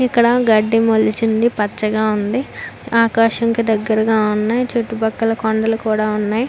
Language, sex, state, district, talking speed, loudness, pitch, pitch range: Telugu, female, Andhra Pradesh, Anantapur, 130 wpm, -16 LUFS, 225 Hz, 215-230 Hz